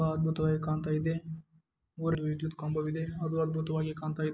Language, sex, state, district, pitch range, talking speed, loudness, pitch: Kannada, male, Karnataka, Dharwad, 155-160 Hz, 165 wpm, -33 LUFS, 160 Hz